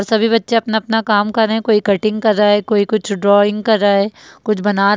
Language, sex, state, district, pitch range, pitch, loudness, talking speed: Hindi, female, Bihar, Jamui, 205-220 Hz, 215 Hz, -15 LUFS, 255 wpm